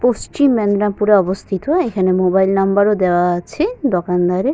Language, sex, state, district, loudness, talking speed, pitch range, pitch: Bengali, female, West Bengal, Paschim Medinipur, -16 LUFS, 130 wpm, 185-235 Hz, 200 Hz